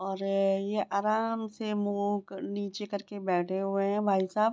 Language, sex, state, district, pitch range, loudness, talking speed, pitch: Hindi, female, Bihar, Begusarai, 195-210 Hz, -30 LUFS, 200 wpm, 200 Hz